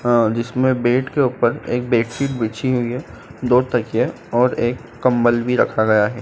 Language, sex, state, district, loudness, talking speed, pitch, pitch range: Hindi, male, Madhya Pradesh, Dhar, -19 LUFS, 185 wpm, 120 Hz, 115-125 Hz